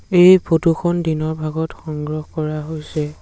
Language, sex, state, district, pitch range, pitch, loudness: Assamese, male, Assam, Sonitpur, 155-165 Hz, 155 Hz, -18 LUFS